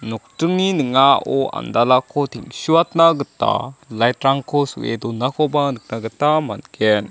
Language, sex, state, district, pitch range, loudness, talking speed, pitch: Garo, male, Meghalaya, South Garo Hills, 120-150 Hz, -18 LUFS, 100 wpm, 135 Hz